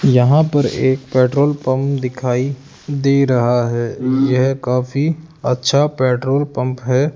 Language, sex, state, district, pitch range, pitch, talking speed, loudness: Hindi, male, Rajasthan, Jaipur, 125-140 Hz, 130 Hz, 125 wpm, -16 LUFS